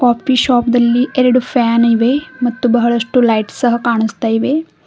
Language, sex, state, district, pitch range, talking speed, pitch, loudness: Kannada, female, Karnataka, Bidar, 235-250 Hz, 135 wpm, 240 Hz, -13 LUFS